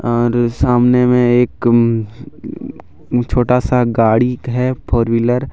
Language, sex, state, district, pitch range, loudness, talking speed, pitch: Hindi, male, Jharkhand, Deoghar, 120-125 Hz, -14 LUFS, 130 wpm, 120 Hz